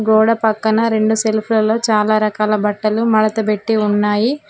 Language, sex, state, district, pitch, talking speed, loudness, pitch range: Telugu, female, Telangana, Mahabubabad, 220 Hz, 145 wpm, -15 LUFS, 215-220 Hz